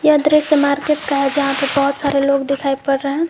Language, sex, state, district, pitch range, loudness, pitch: Hindi, female, Jharkhand, Garhwa, 275-300 Hz, -16 LUFS, 280 Hz